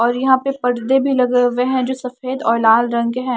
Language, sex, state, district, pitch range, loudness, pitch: Hindi, female, Haryana, Charkhi Dadri, 240-260 Hz, -16 LUFS, 250 Hz